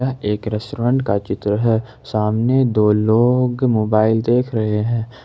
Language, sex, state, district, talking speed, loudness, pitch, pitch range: Hindi, male, Jharkhand, Ranchi, 150 wpm, -18 LUFS, 110 Hz, 105-125 Hz